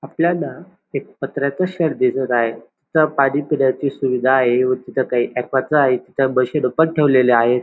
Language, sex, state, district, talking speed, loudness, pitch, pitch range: Marathi, male, Maharashtra, Dhule, 125 wpm, -18 LUFS, 135 Hz, 125-150 Hz